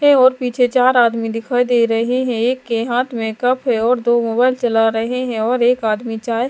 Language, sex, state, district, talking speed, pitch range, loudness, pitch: Hindi, female, Bihar, Katihar, 220 wpm, 230-250 Hz, -16 LUFS, 240 Hz